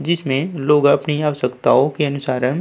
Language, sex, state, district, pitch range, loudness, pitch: Hindi, male, Uttar Pradesh, Budaun, 135-150 Hz, -17 LUFS, 145 Hz